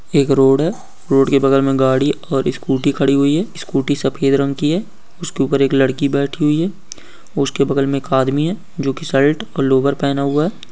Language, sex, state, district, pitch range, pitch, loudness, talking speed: Hindi, male, Bihar, Saran, 135-155 Hz, 140 Hz, -16 LUFS, 220 wpm